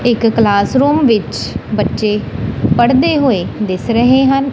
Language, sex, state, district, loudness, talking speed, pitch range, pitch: Punjabi, female, Punjab, Kapurthala, -13 LUFS, 130 wpm, 210-270 Hz, 235 Hz